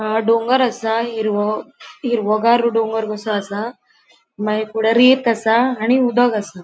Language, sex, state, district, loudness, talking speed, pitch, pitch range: Konkani, female, Goa, North and South Goa, -17 LUFS, 125 wpm, 225 Hz, 215-245 Hz